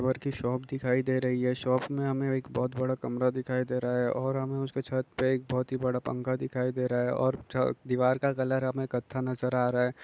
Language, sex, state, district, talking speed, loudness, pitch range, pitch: Hindi, male, Chhattisgarh, Balrampur, 245 wpm, -30 LUFS, 125-130 Hz, 130 Hz